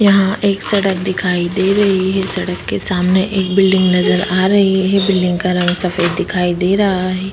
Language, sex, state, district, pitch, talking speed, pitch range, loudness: Hindi, female, Chhattisgarh, Korba, 190 Hz, 195 wpm, 180-195 Hz, -15 LUFS